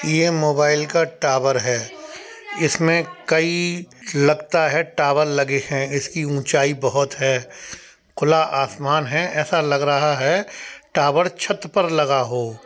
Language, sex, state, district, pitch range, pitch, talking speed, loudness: Hindi, male, Uttar Pradesh, Budaun, 140-170 Hz, 150 Hz, 135 wpm, -19 LUFS